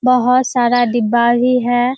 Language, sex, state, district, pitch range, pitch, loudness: Hindi, female, Bihar, Kishanganj, 240-250 Hz, 245 Hz, -14 LUFS